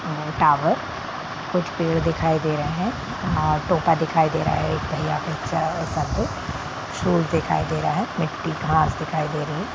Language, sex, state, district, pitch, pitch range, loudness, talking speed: Hindi, female, Bihar, Darbhanga, 160 Hz, 155-165 Hz, -23 LUFS, 180 wpm